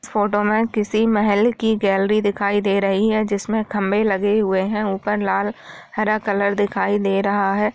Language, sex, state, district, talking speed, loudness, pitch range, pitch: Hindi, female, Bihar, Jamui, 170 wpm, -19 LUFS, 200-215 Hz, 205 Hz